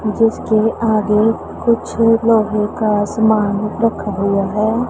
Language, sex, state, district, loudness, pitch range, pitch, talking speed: Hindi, female, Punjab, Pathankot, -16 LUFS, 210-225 Hz, 215 Hz, 110 wpm